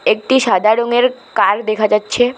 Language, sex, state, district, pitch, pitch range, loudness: Bengali, female, West Bengal, Alipurduar, 225 Hz, 215-250 Hz, -14 LUFS